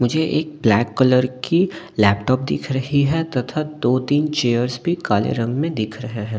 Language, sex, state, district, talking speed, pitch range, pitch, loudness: Hindi, male, Delhi, New Delhi, 180 wpm, 120-155 Hz, 130 Hz, -19 LUFS